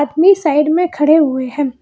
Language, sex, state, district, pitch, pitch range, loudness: Hindi, female, Karnataka, Bangalore, 300 Hz, 290-330 Hz, -13 LUFS